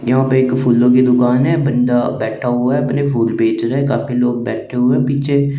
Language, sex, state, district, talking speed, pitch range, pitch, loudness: Hindi, male, Chandigarh, Chandigarh, 235 wpm, 120-135 Hz, 125 Hz, -15 LUFS